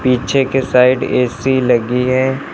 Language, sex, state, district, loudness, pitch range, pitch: Hindi, male, Uttar Pradesh, Lucknow, -14 LUFS, 125-130 Hz, 130 Hz